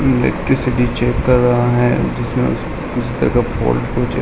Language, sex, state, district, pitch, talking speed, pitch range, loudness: Hindi, male, Uttar Pradesh, Hamirpur, 125 Hz, 130 wpm, 120-125 Hz, -16 LUFS